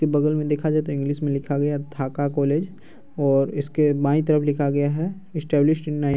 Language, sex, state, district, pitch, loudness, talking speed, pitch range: Hindi, male, Bihar, Araria, 145 Hz, -22 LUFS, 215 wpm, 145-155 Hz